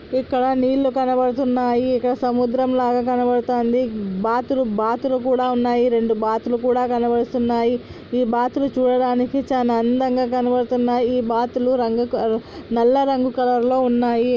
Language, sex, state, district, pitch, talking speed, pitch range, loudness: Telugu, female, Andhra Pradesh, Anantapur, 250 Hz, 125 wpm, 240-255 Hz, -19 LUFS